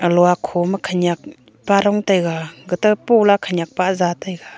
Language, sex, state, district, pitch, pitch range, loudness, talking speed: Wancho, female, Arunachal Pradesh, Longding, 180 Hz, 175-200 Hz, -18 LUFS, 195 wpm